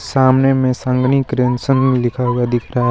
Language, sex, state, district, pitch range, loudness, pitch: Hindi, female, Jharkhand, Garhwa, 125-135 Hz, -15 LUFS, 125 Hz